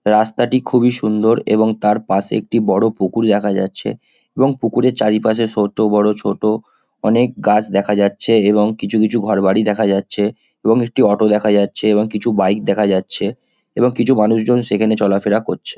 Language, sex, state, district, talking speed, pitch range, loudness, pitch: Bengali, male, West Bengal, Kolkata, 165 wpm, 105-115 Hz, -16 LUFS, 105 Hz